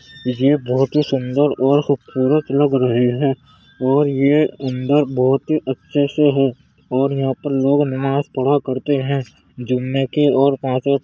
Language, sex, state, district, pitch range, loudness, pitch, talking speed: Hindi, male, Uttar Pradesh, Jyotiba Phule Nagar, 130-145 Hz, -18 LUFS, 135 Hz, 165 wpm